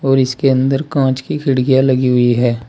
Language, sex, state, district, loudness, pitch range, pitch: Hindi, male, Uttar Pradesh, Saharanpur, -14 LUFS, 125-135 Hz, 130 Hz